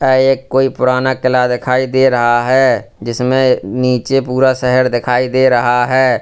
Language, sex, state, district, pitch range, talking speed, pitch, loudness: Hindi, male, Uttar Pradesh, Lalitpur, 125-130 Hz, 165 wpm, 130 Hz, -13 LUFS